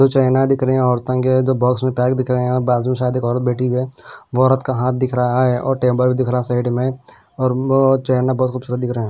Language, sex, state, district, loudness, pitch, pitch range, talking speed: Hindi, male, Punjab, Pathankot, -17 LUFS, 130 Hz, 125-130 Hz, 230 wpm